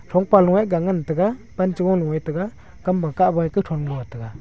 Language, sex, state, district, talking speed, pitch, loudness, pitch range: Wancho, male, Arunachal Pradesh, Longding, 205 wpm, 180 Hz, -21 LUFS, 160-190 Hz